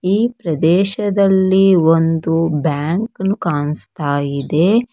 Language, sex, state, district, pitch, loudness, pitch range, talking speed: Kannada, female, Karnataka, Bangalore, 170 Hz, -16 LUFS, 155-195 Hz, 75 wpm